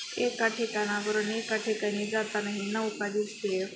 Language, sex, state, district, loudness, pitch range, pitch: Marathi, female, Maharashtra, Sindhudurg, -30 LUFS, 205-220 Hz, 210 Hz